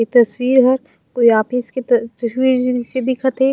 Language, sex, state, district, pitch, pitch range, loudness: Chhattisgarhi, female, Chhattisgarh, Raigarh, 250 Hz, 240-260 Hz, -16 LUFS